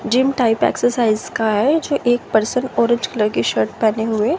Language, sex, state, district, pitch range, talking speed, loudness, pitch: Hindi, female, Haryana, Jhajjar, 215-250 Hz, 190 wpm, -18 LUFS, 235 Hz